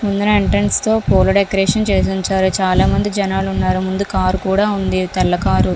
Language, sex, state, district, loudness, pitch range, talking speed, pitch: Telugu, female, Andhra Pradesh, Visakhapatnam, -16 LUFS, 185-200 Hz, 175 wpm, 190 Hz